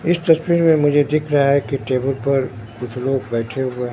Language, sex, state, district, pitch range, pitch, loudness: Hindi, male, Bihar, Katihar, 125-150 Hz, 135 Hz, -18 LUFS